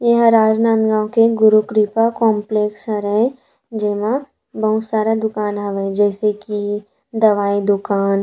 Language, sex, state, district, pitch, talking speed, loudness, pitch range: Chhattisgarhi, female, Chhattisgarh, Rajnandgaon, 215 Hz, 125 wpm, -17 LUFS, 205-225 Hz